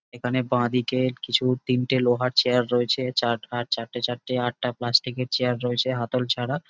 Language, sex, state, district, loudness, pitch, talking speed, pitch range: Bengali, male, West Bengal, Jhargram, -24 LUFS, 125 Hz, 150 wpm, 120-125 Hz